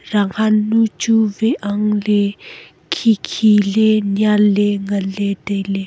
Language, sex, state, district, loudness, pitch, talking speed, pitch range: Wancho, female, Arunachal Pradesh, Longding, -16 LUFS, 210 Hz, 155 wpm, 200-215 Hz